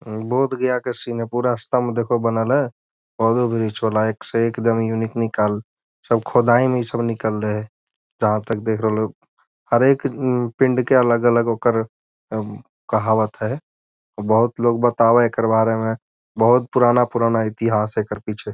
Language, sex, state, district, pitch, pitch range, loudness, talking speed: Magahi, male, Bihar, Gaya, 115 Hz, 110-120 Hz, -19 LUFS, 170 wpm